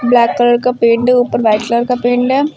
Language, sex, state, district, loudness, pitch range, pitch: Hindi, female, Uttar Pradesh, Lucknow, -12 LUFS, 235-250 Hz, 245 Hz